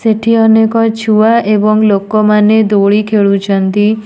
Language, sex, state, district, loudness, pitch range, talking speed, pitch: Odia, female, Odisha, Nuapada, -10 LUFS, 205-220 Hz, 105 wpm, 215 Hz